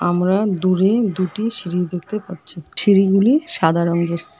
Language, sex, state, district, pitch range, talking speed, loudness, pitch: Bengali, female, West Bengal, Alipurduar, 175-210 Hz, 135 wpm, -18 LUFS, 185 Hz